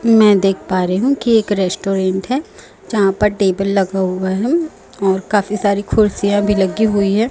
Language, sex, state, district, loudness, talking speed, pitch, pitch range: Hindi, female, Chhattisgarh, Raipur, -16 LUFS, 190 wpm, 200 Hz, 190-220 Hz